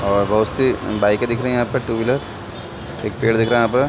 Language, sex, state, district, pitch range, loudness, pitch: Hindi, male, Chhattisgarh, Balrampur, 105-125 Hz, -19 LUFS, 115 Hz